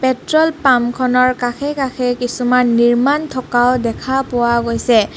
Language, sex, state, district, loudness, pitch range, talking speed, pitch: Assamese, female, Assam, Kamrup Metropolitan, -15 LUFS, 240-260 Hz, 130 wpm, 250 Hz